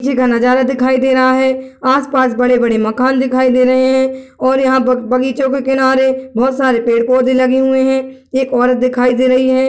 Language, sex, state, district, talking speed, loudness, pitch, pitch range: Hindi, male, Bihar, Jahanabad, 190 wpm, -13 LUFS, 260 Hz, 255-265 Hz